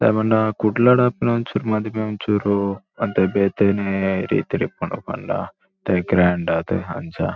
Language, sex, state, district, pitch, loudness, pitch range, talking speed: Tulu, male, Karnataka, Dakshina Kannada, 105 Hz, -20 LUFS, 95-110 Hz, 120 wpm